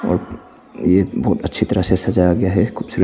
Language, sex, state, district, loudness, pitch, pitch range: Hindi, male, Arunachal Pradesh, Papum Pare, -17 LUFS, 95 Hz, 90-105 Hz